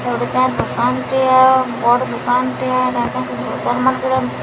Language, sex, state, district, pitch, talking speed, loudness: Odia, female, Odisha, Sambalpur, 245 Hz, 120 wpm, -16 LUFS